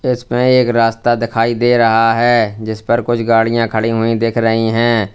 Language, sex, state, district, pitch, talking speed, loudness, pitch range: Hindi, male, Uttar Pradesh, Lalitpur, 115 Hz, 185 wpm, -14 LUFS, 115-120 Hz